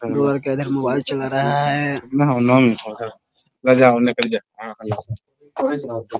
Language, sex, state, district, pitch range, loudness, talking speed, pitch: Hindi, male, Bihar, Muzaffarpur, 115-140 Hz, -19 LUFS, 50 wpm, 135 Hz